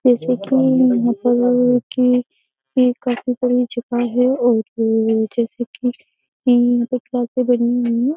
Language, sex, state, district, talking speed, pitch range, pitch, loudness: Hindi, female, Uttar Pradesh, Jyotiba Phule Nagar, 140 wpm, 240-250 Hz, 245 Hz, -17 LUFS